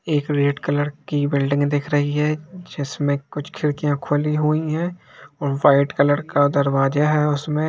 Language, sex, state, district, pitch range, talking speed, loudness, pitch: Hindi, male, Jharkhand, Jamtara, 140-150 Hz, 155 wpm, -20 LUFS, 145 Hz